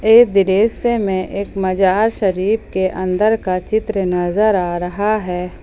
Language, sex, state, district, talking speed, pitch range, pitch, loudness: Hindi, female, Jharkhand, Ranchi, 160 wpm, 185-215 Hz, 195 Hz, -17 LUFS